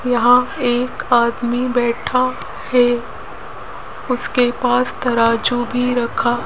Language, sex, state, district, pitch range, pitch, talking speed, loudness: Hindi, female, Rajasthan, Jaipur, 240-250 Hz, 245 Hz, 100 wpm, -17 LUFS